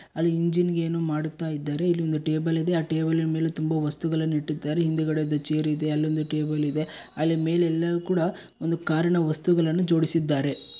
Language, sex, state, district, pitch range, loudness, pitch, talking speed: Kannada, male, Karnataka, Bellary, 155-165 Hz, -25 LUFS, 160 Hz, 170 wpm